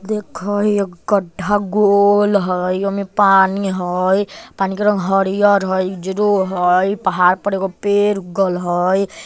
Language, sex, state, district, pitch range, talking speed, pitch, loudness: Bajjika, male, Bihar, Vaishali, 185-205 Hz, 135 wpm, 195 Hz, -16 LUFS